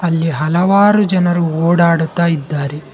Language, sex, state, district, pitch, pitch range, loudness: Kannada, male, Karnataka, Bangalore, 170 Hz, 160-175 Hz, -14 LUFS